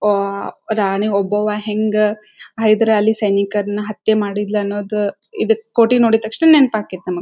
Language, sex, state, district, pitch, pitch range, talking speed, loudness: Kannada, female, Karnataka, Dharwad, 210 Hz, 205-220 Hz, 125 wpm, -16 LUFS